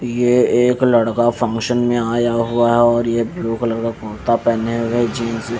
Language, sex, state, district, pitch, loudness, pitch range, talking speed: Hindi, male, Bihar, West Champaran, 120 Hz, -17 LUFS, 115-120 Hz, 205 wpm